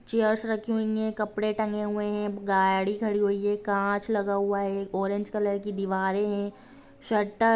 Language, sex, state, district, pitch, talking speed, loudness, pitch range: Hindi, female, Jharkhand, Jamtara, 205 Hz, 175 wpm, -27 LUFS, 200-215 Hz